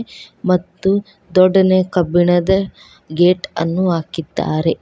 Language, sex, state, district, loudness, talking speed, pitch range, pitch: Kannada, female, Karnataka, Koppal, -16 LUFS, 75 wpm, 170-190 Hz, 180 Hz